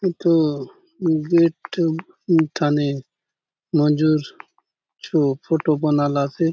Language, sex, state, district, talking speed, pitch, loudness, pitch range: Halbi, male, Chhattisgarh, Bastar, 85 wpm, 155 Hz, -20 LUFS, 145-170 Hz